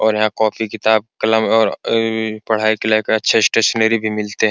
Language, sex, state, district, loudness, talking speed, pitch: Hindi, male, Bihar, Supaul, -16 LUFS, 170 wpm, 110 Hz